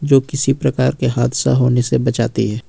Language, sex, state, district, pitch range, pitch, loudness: Hindi, male, Jharkhand, Ranchi, 115-135 Hz, 125 Hz, -16 LUFS